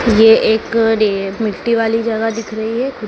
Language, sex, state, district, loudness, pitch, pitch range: Hindi, male, Madhya Pradesh, Dhar, -15 LUFS, 225 Hz, 220-230 Hz